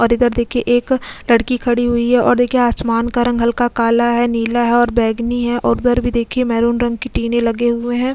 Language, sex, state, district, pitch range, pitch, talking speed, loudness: Hindi, female, Goa, North and South Goa, 235-245 Hz, 240 Hz, 235 wpm, -16 LUFS